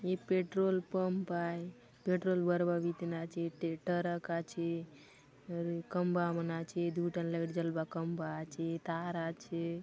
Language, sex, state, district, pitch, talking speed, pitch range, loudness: Halbi, female, Chhattisgarh, Bastar, 170 Hz, 140 wpm, 165-175 Hz, -36 LUFS